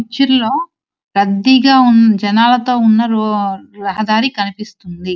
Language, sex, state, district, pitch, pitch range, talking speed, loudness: Telugu, female, Andhra Pradesh, Srikakulam, 220 Hz, 200-250 Hz, 80 wpm, -12 LUFS